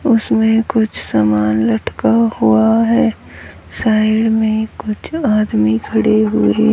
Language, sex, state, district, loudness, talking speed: Hindi, female, Haryana, Rohtak, -14 LUFS, 105 wpm